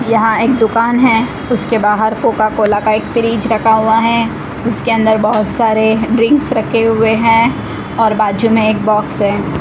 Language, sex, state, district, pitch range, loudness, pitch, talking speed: Hindi, female, Odisha, Malkangiri, 215-230 Hz, -12 LUFS, 225 Hz, 170 wpm